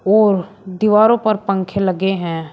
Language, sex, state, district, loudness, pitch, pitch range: Hindi, male, Uttar Pradesh, Shamli, -16 LUFS, 195 Hz, 185-210 Hz